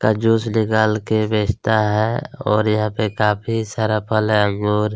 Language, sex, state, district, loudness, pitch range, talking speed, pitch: Hindi, male, Chhattisgarh, Kabirdham, -19 LUFS, 105-110 Hz, 155 wpm, 110 Hz